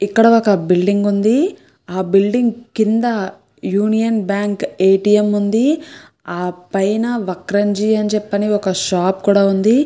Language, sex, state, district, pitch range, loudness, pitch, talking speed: Telugu, female, Andhra Pradesh, Krishna, 195-225 Hz, -16 LUFS, 205 Hz, 140 wpm